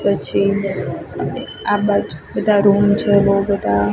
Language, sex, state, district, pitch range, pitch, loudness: Gujarati, female, Gujarat, Gandhinagar, 200-205 Hz, 200 Hz, -17 LUFS